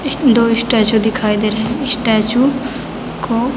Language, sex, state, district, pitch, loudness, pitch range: Hindi, female, Chhattisgarh, Raipur, 235 Hz, -14 LUFS, 220-255 Hz